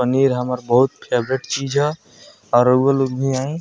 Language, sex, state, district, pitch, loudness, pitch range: Bhojpuri, male, Bihar, Muzaffarpur, 130 Hz, -18 LUFS, 125-135 Hz